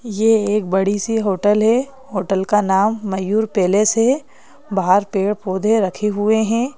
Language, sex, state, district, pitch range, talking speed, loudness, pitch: Hindi, female, Madhya Pradesh, Bhopal, 195-225 Hz, 150 wpm, -17 LUFS, 210 Hz